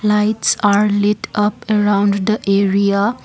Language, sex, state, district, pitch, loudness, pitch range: English, female, Assam, Kamrup Metropolitan, 205 Hz, -16 LUFS, 200-210 Hz